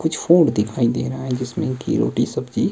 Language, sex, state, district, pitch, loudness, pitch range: Hindi, male, Himachal Pradesh, Shimla, 130 Hz, -20 LUFS, 125-160 Hz